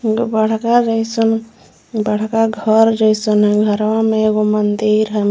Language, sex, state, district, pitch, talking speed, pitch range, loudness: Magahi, female, Jharkhand, Palamu, 220 Hz, 170 wpm, 215-225 Hz, -15 LUFS